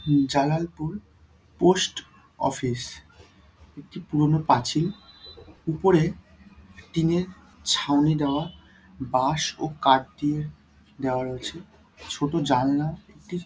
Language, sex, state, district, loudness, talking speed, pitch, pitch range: Bengali, female, West Bengal, Dakshin Dinajpur, -25 LUFS, 90 wpm, 145 Hz, 130-160 Hz